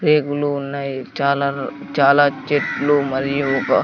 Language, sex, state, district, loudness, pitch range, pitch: Telugu, male, Andhra Pradesh, Sri Satya Sai, -19 LUFS, 140-145 Hz, 140 Hz